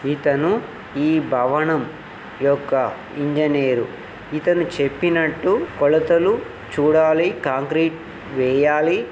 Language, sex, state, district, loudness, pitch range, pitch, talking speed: Telugu, male, Telangana, Nalgonda, -19 LUFS, 140-165 Hz, 150 Hz, 70 wpm